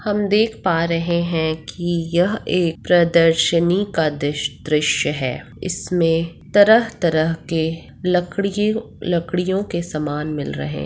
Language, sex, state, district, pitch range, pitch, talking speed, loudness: Hindi, female, Bihar, Madhepura, 160-185 Hz, 170 Hz, 125 wpm, -19 LUFS